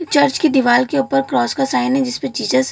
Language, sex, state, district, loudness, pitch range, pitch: Hindi, female, Bihar, Lakhisarai, -16 LUFS, 255-280 Hz, 270 Hz